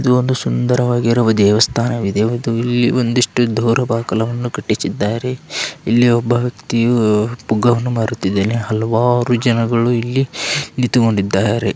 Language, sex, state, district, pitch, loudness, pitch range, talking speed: Kannada, male, Karnataka, Dharwad, 120 Hz, -16 LUFS, 110-120 Hz, 90 wpm